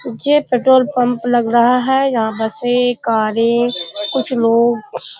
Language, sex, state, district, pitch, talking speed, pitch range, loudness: Hindi, female, Uttar Pradesh, Budaun, 245 Hz, 140 wpm, 230-255 Hz, -15 LUFS